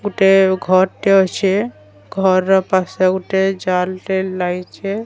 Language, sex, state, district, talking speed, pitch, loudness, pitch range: Odia, female, Odisha, Sambalpur, 85 wpm, 190 Hz, -16 LUFS, 185-195 Hz